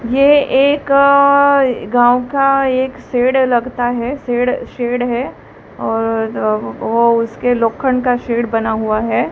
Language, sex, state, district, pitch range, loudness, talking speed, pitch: Hindi, female, Gujarat, Gandhinagar, 235-270 Hz, -14 LUFS, 130 wpm, 245 Hz